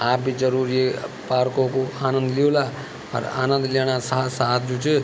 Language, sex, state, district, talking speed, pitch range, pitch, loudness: Garhwali, male, Uttarakhand, Tehri Garhwal, 180 wpm, 125-135 Hz, 130 Hz, -22 LUFS